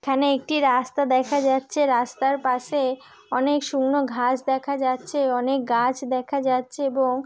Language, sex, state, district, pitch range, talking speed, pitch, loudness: Bengali, female, West Bengal, Dakshin Dinajpur, 255-280 Hz, 140 wpm, 265 Hz, -23 LUFS